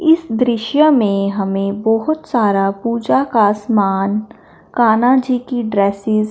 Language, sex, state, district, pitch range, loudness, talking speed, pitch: Hindi, male, Punjab, Fazilka, 200-245 Hz, -15 LUFS, 135 wpm, 225 Hz